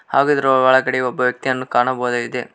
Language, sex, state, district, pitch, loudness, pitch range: Kannada, male, Karnataka, Koppal, 130 Hz, -17 LUFS, 125-130 Hz